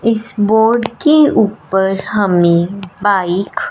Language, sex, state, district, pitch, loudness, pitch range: Hindi, male, Punjab, Fazilka, 205 Hz, -13 LUFS, 190-230 Hz